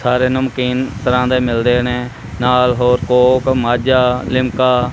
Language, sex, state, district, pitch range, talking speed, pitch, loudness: Punjabi, male, Punjab, Kapurthala, 125-130 Hz, 145 wpm, 125 Hz, -14 LUFS